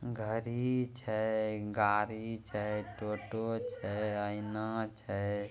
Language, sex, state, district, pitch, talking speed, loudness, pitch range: Angika, male, Bihar, Begusarai, 110 Hz, 85 wpm, -36 LUFS, 105-115 Hz